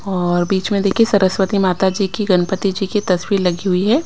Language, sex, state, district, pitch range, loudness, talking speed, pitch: Hindi, female, Himachal Pradesh, Shimla, 185-200 Hz, -17 LUFS, 220 wpm, 195 Hz